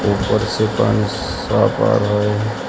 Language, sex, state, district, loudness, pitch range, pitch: Hindi, male, Uttar Pradesh, Shamli, -17 LUFS, 100-105 Hz, 105 Hz